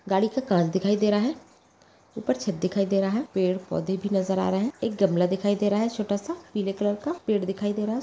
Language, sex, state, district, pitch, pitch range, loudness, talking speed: Magahi, female, Bihar, Gaya, 200 Hz, 190-215 Hz, -26 LUFS, 270 wpm